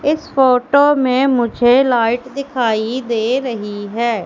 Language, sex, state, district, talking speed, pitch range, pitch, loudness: Hindi, female, Madhya Pradesh, Katni, 125 wpm, 230-265 Hz, 250 Hz, -15 LUFS